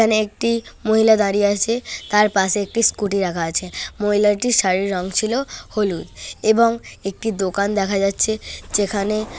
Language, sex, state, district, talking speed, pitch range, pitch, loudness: Bengali, female, West Bengal, Kolkata, 145 wpm, 195-220 Hz, 205 Hz, -19 LUFS